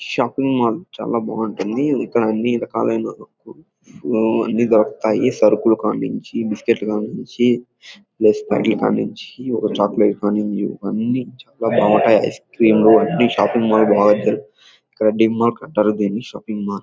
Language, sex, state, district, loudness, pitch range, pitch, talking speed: Telugu, male, Andhra Pradesh, Chittoor, -18 LUFS, 105-120 Hz, 110 Hz, 140 wpm